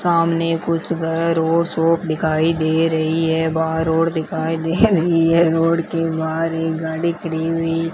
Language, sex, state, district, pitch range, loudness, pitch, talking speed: Hindi, male, Rajasthan, Bikaner, 160-165 Hz, -18 LUFS, 165 Hz, 165 wpm